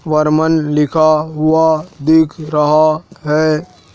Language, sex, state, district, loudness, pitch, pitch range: Hindi, male, Madhya Pradesh, Dhar, -13 LUFS, 155 Hz, 155-160 Hz